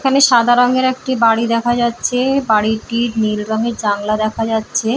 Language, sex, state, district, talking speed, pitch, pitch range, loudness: Bengali, female, West Bengal, Paschim Medinipur, 155 wpm, 230 Hz, 220-245 Hz, -15 LUFS